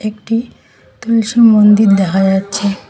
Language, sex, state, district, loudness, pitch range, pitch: Bengali, female, West Bengal, Cooch Behar, -12 LUFS, 195-225 Hz, 210 Hz